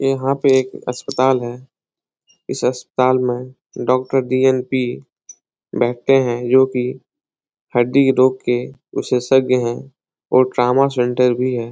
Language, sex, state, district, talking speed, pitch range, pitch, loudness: Hindi, male, Bihar, Jahanabad, 125 wpm, 125-130 Hz, 130 Hz, -17 LUFS